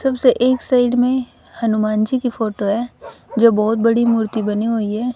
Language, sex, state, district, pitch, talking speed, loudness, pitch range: Hindi, female, Haryana, Rohtak, 230 Hz, 185 wpm, -17 LUFS, 215-250 Hz